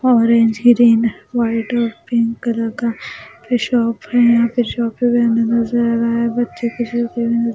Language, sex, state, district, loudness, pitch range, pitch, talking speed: Hindi, female, Maharashtra, Mumbai Suburban, -16 LUFS, 230-240 Hz, 235 Hz, 160 wpm